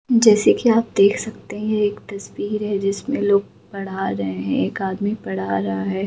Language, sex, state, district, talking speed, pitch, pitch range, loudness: Hindi, female, Bihar, Gaya, 195 wpm, 200 Hz, 190-215 Hz, -20 LUFS